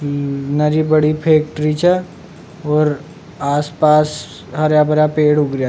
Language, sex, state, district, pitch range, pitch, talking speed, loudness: Rajasthani, male, Rajasthan, Nagaur, 150-155 Hz, 150 Hz, 125 wpm, -15 LUFS